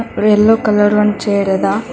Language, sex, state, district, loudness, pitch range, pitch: Kannada, female, Karnataka, Bangalore, -13 LUFS, 205-215 Hz, 210 Hz